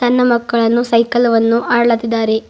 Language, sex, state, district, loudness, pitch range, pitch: Kannada, female, Karnataka, Bidar, -14 LUFS, 230-240 Hz, 235 Hz